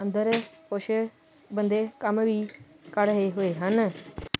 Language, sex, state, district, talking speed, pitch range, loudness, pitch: Punjabi, female, Punjab, Kapurthala, 125 wpm, 200-220 Hz, -27 LUFS, 210 Hz